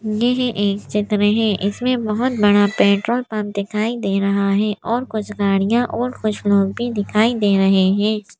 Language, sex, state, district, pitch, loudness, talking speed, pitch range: Hindi, female, Madhya Pradesh, Bhopal, 210 Hz, -18 LUFS, 170 wpm, 200-230 Hz